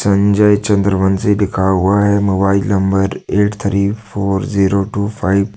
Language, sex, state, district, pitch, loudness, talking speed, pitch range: Hindi, male, Jharkhand, Deoghar, 100 Hz, -14 LUFS, 150 wpm, 95-100 Hz